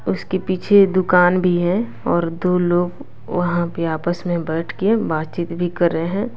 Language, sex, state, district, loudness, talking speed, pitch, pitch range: Hindi, female, Bihar, West Champaran, -19 LUFS, 180 wpm, 175 Hz, 170-185 Hz